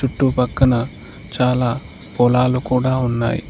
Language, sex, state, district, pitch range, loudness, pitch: Telugu, male, Telangana, Mahabubabad, 115-130 Hz, -18 LUFS, 125 Hz